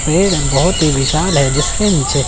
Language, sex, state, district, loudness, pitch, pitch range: Hindi, male, Chandigarh, Chandigarh, -13 LUFS, 155 Hz, 140-180 Hz